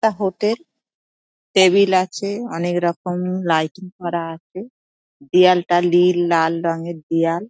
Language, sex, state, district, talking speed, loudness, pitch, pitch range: Bengali, female, West Bengal, Dakshin Dinajpur, 120 wpm, -18 LUFS, 180 Hz, 170-190 Hz